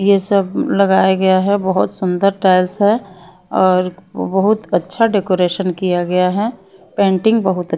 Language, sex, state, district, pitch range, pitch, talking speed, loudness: Hindi, female, Bihar, West Champaran, 185-200 Hz, 190 Hz, 145 wpm, -15 LUFS